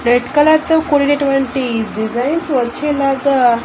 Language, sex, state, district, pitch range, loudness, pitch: Telugu, female, Andhra Pradesh, Annamaya, 245-295 Hz, -15 LUFS, 275 Hz